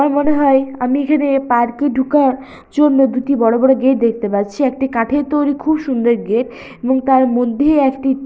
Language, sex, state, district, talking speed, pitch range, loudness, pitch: Bengali, female, West Bengal, Purulia, 180 wpm, 245-285 Hz, -15 LUFS, 265 Hz